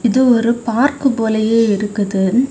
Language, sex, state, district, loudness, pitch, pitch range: Tamil, female, Tamil Nadu, Kanyakumari, -15 LUFS, 230 Hz, 215-250 Hz